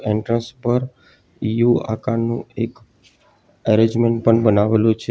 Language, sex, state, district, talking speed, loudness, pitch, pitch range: Gujarati, male, Gujarat, Valsad, 105 wpm, -19 LUFS, 115 Hz, 110-120 Hz